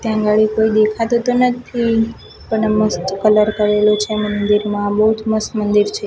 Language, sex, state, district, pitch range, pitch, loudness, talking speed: Gujarati, female, Gujarat, Gandhinagar, 210-225 Hz, 215 Hz, -16 LUFS, 170 wpm